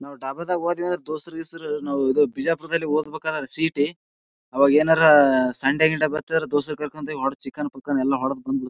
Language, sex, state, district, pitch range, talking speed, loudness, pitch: Kannada, male, Karnataka, Bijapur, 135-160 Hz, 195 wpm, -22 LUFS, 150 Hz